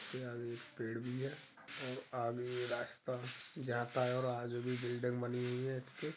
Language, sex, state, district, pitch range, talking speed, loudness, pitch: Hindi, male, Uttar Pradesh, Hamirpur, 120-130 Hz, 185 wpm, -41 LUFS, 125 Hz